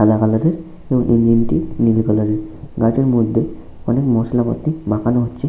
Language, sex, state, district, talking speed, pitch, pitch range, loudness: Bengali, male, West Bengal, Malda, 175 wpm, 115 Hz, 110-125 Hz, -17 LUFS